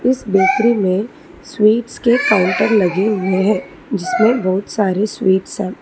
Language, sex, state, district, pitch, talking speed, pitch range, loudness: Hindi, female, Telangana, Hyderabad, 210 Hz, 145 wpm, 190-235 Hz, -16 LUFS